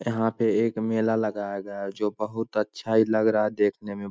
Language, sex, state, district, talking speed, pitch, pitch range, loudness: Hindi, male, Bihar, Jamui, 205 wpm, 110 Hz, 105-110 Hz, -26 LUFS